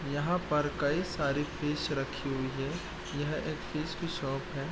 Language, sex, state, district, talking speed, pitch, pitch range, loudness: Hindi, male, Bihar, East Champaran, 180 wpm, 145 Hz, 140-160 Hz, -33 LUFS